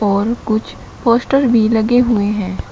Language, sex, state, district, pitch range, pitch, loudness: Hindi, male, Uttar Pradesh, Shamli, 210-240 Hz, 225 Hz, -15 LUFS